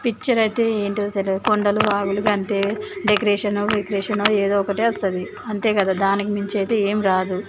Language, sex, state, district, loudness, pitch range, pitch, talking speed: Telugu, female, Telangana, Nalgonda, -20 LUFS, 200-210 Hz, 205 Hz, 150 wpm